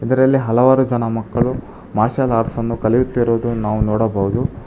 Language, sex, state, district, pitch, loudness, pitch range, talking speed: Kannada, male, Karnataka, Bangalore, 115 Hz, -17 LUFS, 110-130 Hz, 130 wpm